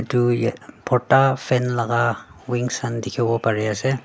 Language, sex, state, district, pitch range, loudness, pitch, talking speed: Nagamese, female, Nagaland, Dimapur, 115-125 Hz, -21 LUFS, 120 Hz, 150 wpm